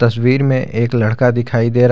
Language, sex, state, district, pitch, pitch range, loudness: Hindi, male, Jharkhand, Garhwa, 120 Hz, 115-125 Hz, -15 LUFS